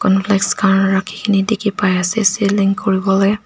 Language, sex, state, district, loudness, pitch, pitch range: Nagamese, female, Nagaland, Dimapur, -15 LUFS, 200 Hz, 195-205 Hz